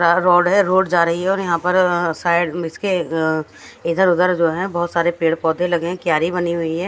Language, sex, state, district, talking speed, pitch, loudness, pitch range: Hindi, female, Punjab, Fazilka, 225 wpm, 175 Hz, -18 LUFS, 170-180 Hz